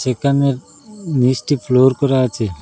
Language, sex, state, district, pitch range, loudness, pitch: Bengali, male, Assam, Hailakandi, 125-140 Hz, -16 LUFS, 130 Hz